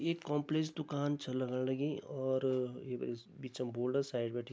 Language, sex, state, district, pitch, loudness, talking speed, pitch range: Garhwali, male, Uttarakhand, Tehri Garhwal, 130 Hz, -37 LUFS, 200 wpm, 125-145 Hz